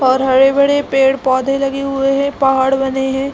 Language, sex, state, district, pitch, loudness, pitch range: Hindi, female, Chhattisgarh, Raigarh, 270 Hz, -14 LUFS, 265-275 Hz